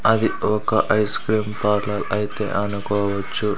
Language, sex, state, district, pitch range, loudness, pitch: Telugu, male, Andhra Pradesh, Sri Satya Sai, 100-105 Hz, -21 LUFS, 105 Hz